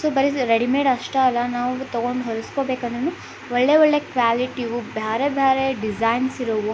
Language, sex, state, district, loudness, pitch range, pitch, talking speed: Kannada, female, Karnataka, Belgaum, -21 LUFS, 235-270 Hz, 250 Hz, 150 wpm